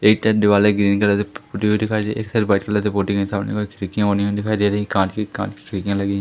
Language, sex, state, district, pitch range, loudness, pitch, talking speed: Hindi, male, Madhya Pradesh, Katni, 100-105 Hz, -19 LUFS, 105 Hz, 330 wpm